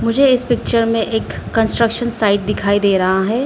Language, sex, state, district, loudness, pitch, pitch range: Hindi, female, Arunachal Pradesh, Lower Dibang Valley, -16 LUFS, 225 Hz, 205-235 Hz